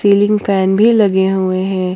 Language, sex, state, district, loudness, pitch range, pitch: Hindi, female, Jharkhand, Ranchi, -13 LUFS, 190-205 Hz, 195 Hz